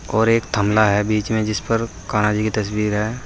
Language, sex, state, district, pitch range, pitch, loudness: Hindi, male, Uttar Pradesh, Saharanpur, 105-110 Hz, 105 Hz, -19 LUFS